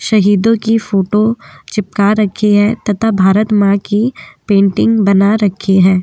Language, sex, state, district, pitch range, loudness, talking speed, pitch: Hindi, female, Uttar Pradesh, Jyotiba Phule Nagar, 200-215 Hz, -12 LUFS, 140 wpm, 205 Hz